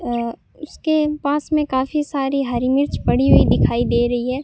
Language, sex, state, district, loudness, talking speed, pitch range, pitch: Hindi, male, Rajasthan, Bikaner, -19 LUFS, 190 wpm, 245-300 Hz, 275 Hz